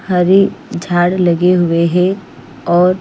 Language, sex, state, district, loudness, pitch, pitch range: Hindi, female, Chandigarh, Chandigarh, -13 LUFS, 180 Hz, 175-185 Hz